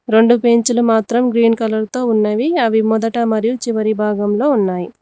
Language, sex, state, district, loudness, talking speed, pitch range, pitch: Telugu, female, Telangana, Mahabubabad, -15 LUFS, 155 wpm, 215-235 Hz, 225 Hz